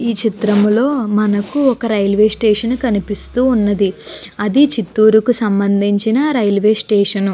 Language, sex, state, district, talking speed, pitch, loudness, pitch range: Telugu, female, Andhra Pradesh, Chittoor, 130 wpm, 215 Hz, -14 LUFS, 205-235 Hz